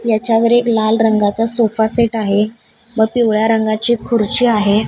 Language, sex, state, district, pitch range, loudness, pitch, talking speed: Marathi, female, Maharashtra, Gondia, 215-235 Hz, -14 LUFS, 225 Hz, 135 wpm